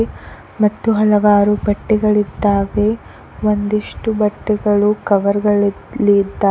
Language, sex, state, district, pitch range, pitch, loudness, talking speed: Kannada, female, Karnataka, Koppal, 205-215 Hz, 210 Hz, -16 LUFS, 65 wpm